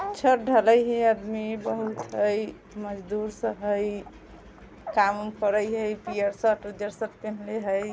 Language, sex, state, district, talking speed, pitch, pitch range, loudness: Bajjika, female, Bihar, Vaishali, 135 wpm, 215 Hz, 205-220 Hz, -26 LUFS